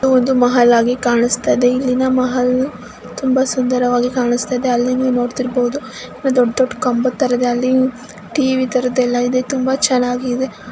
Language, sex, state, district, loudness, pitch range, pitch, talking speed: Kannada, male, Karnataka, Mysore, -16 LUFS, 245-260 Hz, 250 Hz, 130 wpm